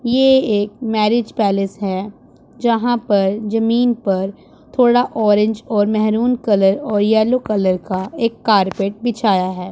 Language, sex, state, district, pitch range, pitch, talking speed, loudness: Hindi, male, Punjab, Pathankot, 195-235 Hz, 215 Hz, 135 wpm, -17 LUFS